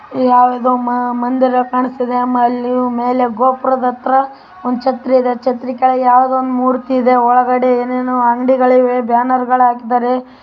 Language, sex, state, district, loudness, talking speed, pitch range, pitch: Kannada, female, Karnataka, Raichur, -13 LUFS, 130 wpm, 245-255 Hz, 250 Hz